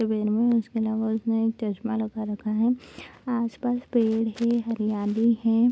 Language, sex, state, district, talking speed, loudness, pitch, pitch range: Hindi, female, Bihar, Kishanganj, 165 wpm, -25 LUFS, 225 Hz, 220-235 Hz